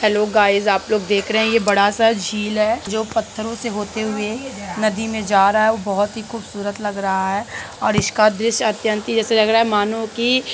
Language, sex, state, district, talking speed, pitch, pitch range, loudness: Hindi, female, Bihar, Sitamarhi, 235 wpm, 215 Hz, 205-225 Hz, -18 LUFS